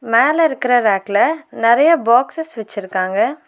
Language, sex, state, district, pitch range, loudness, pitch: Tamil, female, Tamil Nadu, Nilgiris, 215-315 Hz, -15 LUFS, 245 Hz